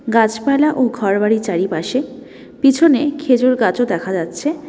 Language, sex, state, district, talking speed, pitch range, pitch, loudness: Bengali, female, West Bengal, Alipurduar, 115 wpm, 210-280 Hz, 250 Hz, -16 LUFS